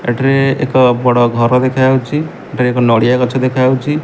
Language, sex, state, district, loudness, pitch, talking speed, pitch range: Odia, male, Odisha, Malkangiri, -12 LUFS, 130 Hz, 150 wpm, 125-135 Hz